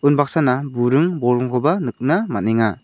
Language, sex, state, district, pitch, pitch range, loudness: Garo, male, Meghalaya, South Garo Hills, 125 Hz, 120-145 Hz, -18 LUFS